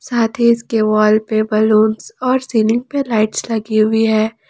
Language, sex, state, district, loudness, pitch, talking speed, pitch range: Hindi, female, Jharkhand, Palamu, -15 LUFS, 220 Hz, 175 wpm, 215-235 Hz